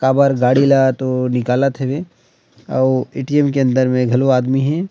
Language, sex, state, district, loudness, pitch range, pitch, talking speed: Chhattisgarhi, male, Chhattisgarh, Rajnandgaon, -16 LUFS, 130-140 Hz, 130 Hz, 170 wpm